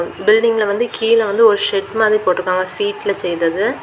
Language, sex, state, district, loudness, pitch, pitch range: Tamil, female, Tamil Nadu, Kanyakumari, -16 LUFS, 205 Hz, 185-220 Hz